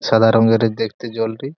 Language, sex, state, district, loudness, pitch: Bengali, male, West Bengal, Purulia, -17 LUFS, 115 Hz